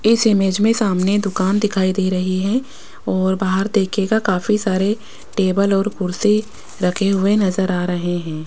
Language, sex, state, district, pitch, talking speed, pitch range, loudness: Hindi, female, Rajasthan, Jaipur, 195 Hz, 165 wpm, 185-210 Hz, -18 LUFS